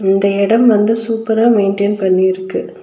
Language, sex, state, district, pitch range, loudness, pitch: Tamil, female, Tamil Nadu, Nilgiris, 190-225 Hz, -13 LUFS, 200 Hz